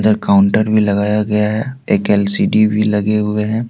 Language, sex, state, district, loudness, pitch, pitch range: Hindi, male, Jharkhand, Deoghar, -14 LUFS, 105 Hz, 105-115 Hz